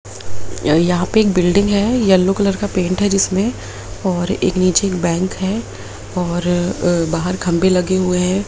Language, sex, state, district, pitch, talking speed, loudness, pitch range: Hindi, female, Bihar, Lakhisarai, 180 Hz, 175 wpm, -16 LUFS, 175-195 Hz